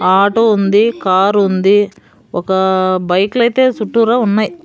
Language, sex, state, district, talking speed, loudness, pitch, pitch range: Telugu, female, Andhra Pradesh, Sri Satya Sai, 115 wpm, -13 LUFS, 200 Hz, 190-225 Hz